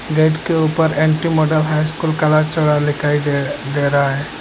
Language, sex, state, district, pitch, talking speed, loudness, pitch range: Hindi, male, Assam, Hailakandi, 155 Hz, 190 wpm, -16 LUFS, 145-155 Hz